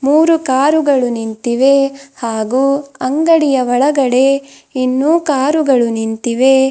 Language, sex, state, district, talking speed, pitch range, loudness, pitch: Kannada, female, Karnataka, Bidar, 80 wpm, 255-285 Hz, -13 LUFS, 270 Hz